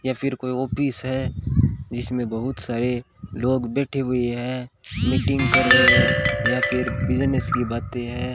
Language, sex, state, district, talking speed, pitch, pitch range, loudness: Hindi, male, Rajasthan, Bikaner, 160 wpm, 125 Hz, 120-130 Hz, -21 LUFS